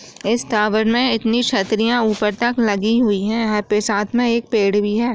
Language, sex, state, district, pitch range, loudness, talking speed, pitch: Hindi, female, Bihar, Jahanabad, 210-235 Hz, -18 LUFS, 210 wpm, 220 Hz